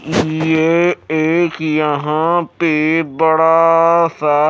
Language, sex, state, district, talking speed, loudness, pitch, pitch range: Hindi, male, Odisha, Malkangiri, 80 wpm, -14 LUFS, 160 Hz, 155-165 Hz